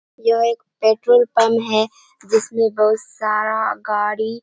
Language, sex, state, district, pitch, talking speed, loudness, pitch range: Hindi, female, Bihar, Kishanganj, 220 Hz, 135 wpm, -18 LUFS, 215-230 Hz